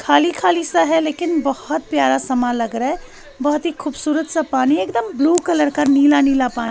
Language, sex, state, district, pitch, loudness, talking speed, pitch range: Hindi, female, Haryana, Charkhi Dadri, 290 Hz, -17 LUFS, 225 wpm, 255-315 Hz